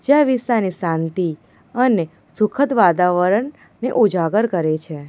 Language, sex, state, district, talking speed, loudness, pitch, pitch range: Gujarati, female, Gujarat, Valsad, 130 wpm, -18 LUFS, 190 Hz, 165-240 Hz